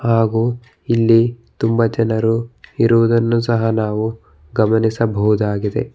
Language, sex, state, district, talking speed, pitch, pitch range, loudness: Kannada, male, Karnataka, Bangalore, 80 wpm, 115 Hz, 110-115 Hz, -17 LUFS